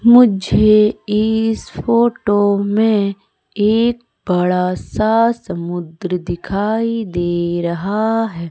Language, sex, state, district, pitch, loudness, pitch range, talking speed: Hindi, female, Madhya Pradesh, Umaria, 205 Hz, -16 LUFS, 180-225 Hz, 85 wpm